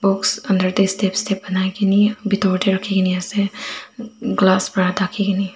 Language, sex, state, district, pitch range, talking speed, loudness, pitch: Nagamese, female, Nagaland, Dimapur, 190-200 Hz, 140 wpm, -19 LUFS, 195 Hz